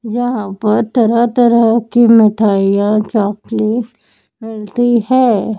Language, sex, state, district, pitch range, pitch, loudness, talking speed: Hindi, female, Madhya Pradesh, Dhar, 210-235 Hz, 225 Hz, -13 LUFS, 95 wpm